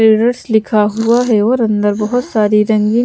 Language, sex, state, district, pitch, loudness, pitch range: Hindi, female, Chandigarh, Chandigarh, 220 Hz, -13 LUFS, 210-235 Hz